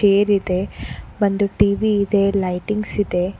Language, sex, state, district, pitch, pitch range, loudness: Kannada, female, Karnataka, Koppal, 200 Hz, 190-205 Hz, -19 LUFS